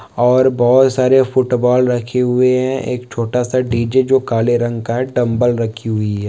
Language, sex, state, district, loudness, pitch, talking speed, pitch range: Hindi, male, West Bengal, North 24 Parganas, -15 LUFS, 125 Hz, 200 wpm, 120-130 Hz